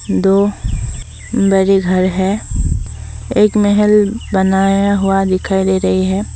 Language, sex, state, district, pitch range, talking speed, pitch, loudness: Hindi, female, Assam, Sonitpur, 190-205 Hz, 115 wpm, 195 Hz, -14 LUFS